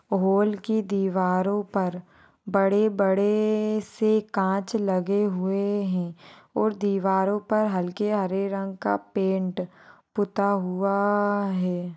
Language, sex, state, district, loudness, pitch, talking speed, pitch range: Hindi, female, Maharashtra, Solapur, -25 LUFS, 195 Hz, 105 wpm, 190-205 Hz